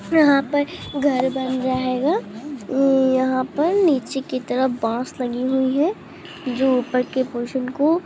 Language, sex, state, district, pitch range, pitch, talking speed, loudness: Hindi, female, Andhra Pradesh, Anantapur, 255-285 Hz, 260 Hz, 150 wpm, -21 LUFS